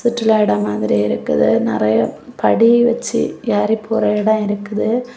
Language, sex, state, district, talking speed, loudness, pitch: Tamil, female, Tamil Nadu, Kanyakumari, 130 wpm, -16 LUFS, 215 Hz